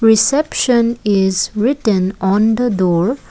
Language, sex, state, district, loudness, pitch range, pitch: English, female, Assam, Kamrup Metropolitan, -15 LUFS, 190-240 Hz, 220 Hz